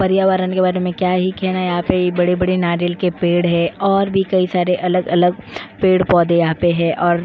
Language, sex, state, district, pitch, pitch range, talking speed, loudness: Hindi, female, Goa, North and South Goa, 180 Hz, 175-185 Hz, 215 wpm, -16 LUFS